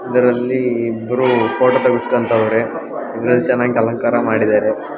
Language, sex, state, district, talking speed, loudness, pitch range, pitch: Kannada, female, Karnataka, Bellary, 110 wpm, -16 LUFS, 115-125 Hz, 120 Hz